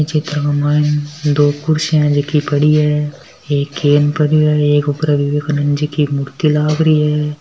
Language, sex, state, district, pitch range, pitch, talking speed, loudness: Marwari, female, Rajasthan, Nagaur, 145-150 Hz, 150 Hz, 185 wpm, -15 LUFS